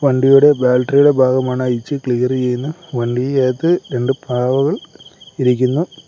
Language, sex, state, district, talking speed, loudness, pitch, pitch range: Malayalam, male, Kerala, Kollam, 100 wpm, -15 LUFS, 130 Hz, 125-140 Hz